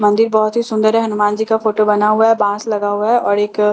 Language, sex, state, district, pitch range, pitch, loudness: Hindi, female, Bihar, Katihar, 210-220 Hz, 215 Hz, -15 LUFS